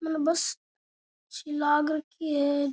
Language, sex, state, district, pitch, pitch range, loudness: Rajasthani, male, Rajasthan, Nagaur, 305 Hz, 295-320 Hz, -28 LUFS